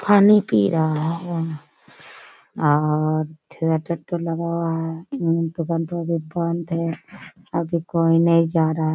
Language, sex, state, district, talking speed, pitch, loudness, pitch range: Hindi, female, Bihar, Sitamarhi, 120 wpm, 165 Hz, -21 LUFS, 160-170 Hz